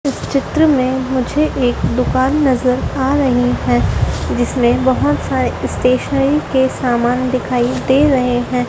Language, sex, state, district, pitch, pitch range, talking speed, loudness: Hindi, female, Madhya Pradesh, Dhar, 255 Hz, 250-275 Hz, 140 wpm, -15 LUFS